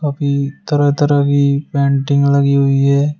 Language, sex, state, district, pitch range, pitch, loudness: Hindi, male, Uttar Pradesh, Shamli, 140-145 Hz, 140 Hz, -14 LUFS